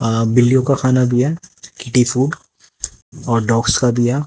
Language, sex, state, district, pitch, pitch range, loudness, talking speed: Hindi, male, Haryana, Jhajjar, 125 Hz, 120-130 Hz, -16 LUFS, 155 wpm